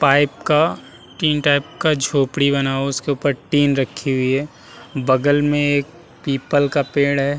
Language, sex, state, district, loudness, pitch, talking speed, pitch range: Hindi, male, Uttar Pradesh, Muzaffarnagar, -18 LUFS, 140 Hz, 185 wpm, 135-145 Hz